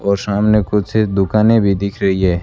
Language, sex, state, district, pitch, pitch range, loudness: Hindi, male, Rajasthan, Bikaner, 100 Hz, 95-105 Hz, -15 LUFS